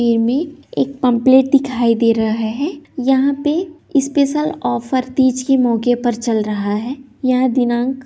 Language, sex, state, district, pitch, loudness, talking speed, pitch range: Hindi, female, Bihar, Jahanabad, 255 Hz, -16 LUFS, 150 wpm, 235-275 Hz